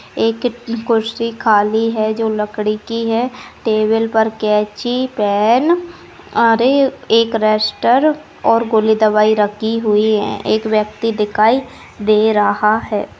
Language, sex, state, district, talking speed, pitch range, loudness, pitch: Hindi, female, Rajasthan, Nagaur, 125 wpm, 215-230 Hz, -15 LUFS, 220 Hz